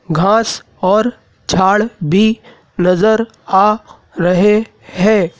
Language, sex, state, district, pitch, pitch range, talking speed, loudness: Hindi, male, Madhya Pradesh, Dhar, 205 Hz, 180-220 Hz, 90 wpm, -14 LUFS